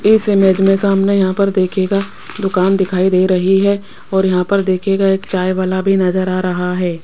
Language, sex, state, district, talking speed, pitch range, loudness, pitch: Hindi, female, Rajasthan, Jaipur, 205 wpm, 185-195 Hz, -14 LUFS, 190 Hz